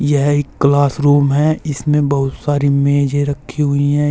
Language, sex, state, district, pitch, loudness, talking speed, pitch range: Hindi, male, Uttar Pradesh, Saharanpur, 145 Hz, -15 LUFS, 175 wpm, 140-145 Hz